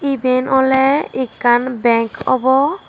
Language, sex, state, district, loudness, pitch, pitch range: Chakma, female, Tripura, Dhalai, -15 LUFS, 260 Hz, 245-270 Hz